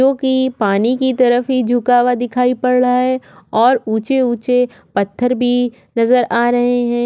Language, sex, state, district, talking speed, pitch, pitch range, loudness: Hindi, female, Maharashtra, Aurangabad, 170 wpm, 245 Hz, 240-255 Hz, -15 LUFS